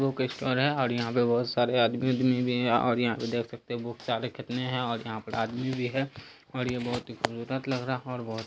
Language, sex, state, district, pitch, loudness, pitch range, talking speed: Hindi, male, Bihar, Araria, 125 Hz, -29 LUFS, 120-130 Hz, 255 wpm